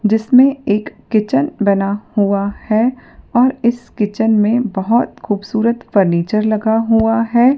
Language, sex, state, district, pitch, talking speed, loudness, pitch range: Hindi, female, Madhya Pradesh, Dhar, 220 Hz, 125 wpm, -15 LUFS, 205-240 Hz